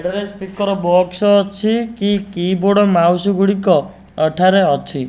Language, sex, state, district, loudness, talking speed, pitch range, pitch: Odia, male, Odisha, Nuapada, -15 LUFS, 130 wpm, 180-200 Hz, 195 Hz